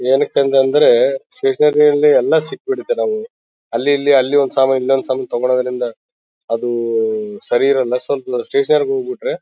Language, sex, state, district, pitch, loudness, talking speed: Kannada, male, Karnataka, Bellary, 140 Hz, -16 LUFS, 155 wpm